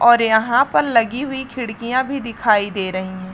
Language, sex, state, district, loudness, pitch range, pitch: Hindi, female, Chhattisgarh, Raigarh, -18 LUFS, 210-250 Hz, 230 Hz